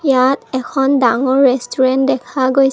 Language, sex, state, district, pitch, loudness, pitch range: Assamese, female, Assam, Kamrup Metropolitan, 265 Hz, -14 LUFS, 260-270 Hz